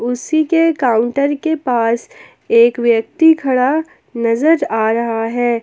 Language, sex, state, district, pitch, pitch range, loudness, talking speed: Hindi, female, Jharkhand, Palamu, 245 Hz, 230-310 Hz, -15 LUFS, 130 wpm